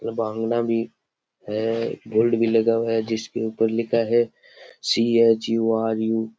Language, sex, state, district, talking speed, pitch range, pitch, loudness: Rajasthani, male, Rajasthan, Churu, 130 wpm, 110-115 Hz, 115 Hz, -22 LUFS